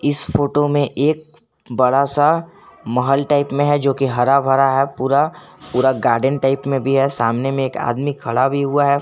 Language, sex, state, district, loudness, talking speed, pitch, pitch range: Hindi, male, Jharkhand, Garhwa, -17 LUFS, 200 wpm, 135 Hz, 130-145 Hz